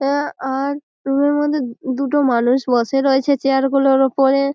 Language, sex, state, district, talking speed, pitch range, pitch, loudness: Bengali, female, West Bengal, Malda, 145 wpm, 265-280 Hz, 275 Hz, -17 LUFS